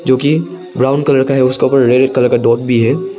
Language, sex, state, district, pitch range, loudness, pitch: Hindi, male, Arunachal Pradesh, Papum Pare, 125-145 Hz, -12 LUFS, 130 Hz